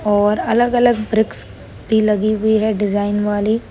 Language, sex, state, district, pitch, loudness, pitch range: Hindi, female, Rajasthan, Nagaur, 215 Hz, -17 LUFS, 205-220 Hz